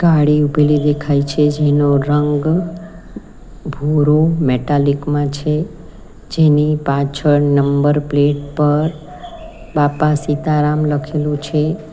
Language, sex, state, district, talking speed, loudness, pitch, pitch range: Gujarati, female, Gujarat, Valsad, 95 wpm, -15 LUFS, 150 Hz, 145-155 Hz